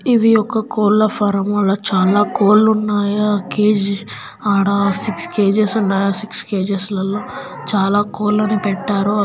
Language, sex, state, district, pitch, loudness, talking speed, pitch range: Telugu, female, Telangana, Nalgonda, 205 Hz, -16 LUFS, 110 wpm, 200-215 Hz